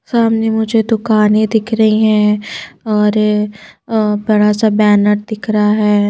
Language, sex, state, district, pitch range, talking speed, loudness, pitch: Hindi, female, Maharashtra, Washim, 210-220 Hz, 140 wpm, -13 LUFS, 215 Hz